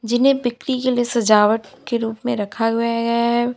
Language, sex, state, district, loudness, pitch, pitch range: Hindi, female, Uttar Pradesh, Lalitpur, -19 LUFS, 235 Hz, 225-245 Hz